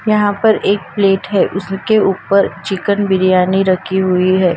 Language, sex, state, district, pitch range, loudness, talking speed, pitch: Hindi, female, Maharashtra, Gondia, 185-200 Hz, -14 LUFS, 155 wpm, 195 Hz